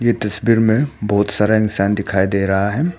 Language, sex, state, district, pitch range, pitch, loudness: Hindi, male, Arunachal Pradesh, Papum Pare, 100-115 Hz, 105 Hz, -17 LUFS